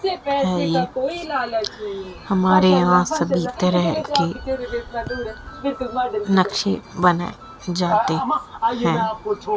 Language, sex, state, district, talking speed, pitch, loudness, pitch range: Hindi, female, Haryana, Jhajjar, 65 wpm, 205 Hz, -21 LUFS, 180-250 Hz